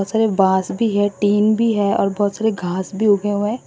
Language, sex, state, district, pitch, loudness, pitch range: Hindi, female, Assam, Sonitpur, 205 Hz, -18 LUFS, 195-220 Hz